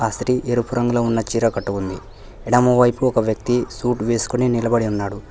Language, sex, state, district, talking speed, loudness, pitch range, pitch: Telugu, male, Telangana, Hyderabad, 145 wpm, -19 LUFS, 110-125 Hz, 115 Hz